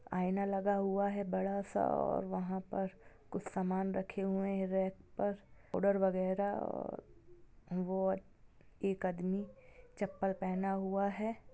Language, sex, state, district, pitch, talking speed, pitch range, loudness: Hindi, female, Bihar, Gopalganj, 190 Hz, 130 wpm, 185-200 Hz, -37 LUFS